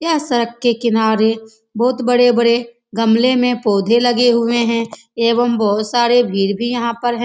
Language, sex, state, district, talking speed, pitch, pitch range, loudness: Hindi, female, Bihar, Lakhisarai, 165 wpm, 235 Hz, 225-245 Hz, -15 LUFS